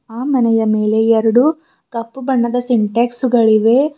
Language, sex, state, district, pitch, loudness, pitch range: Kannada, female, Karnataka, Bidar, 235 Hz, -14 LUFS, 225-260 Hz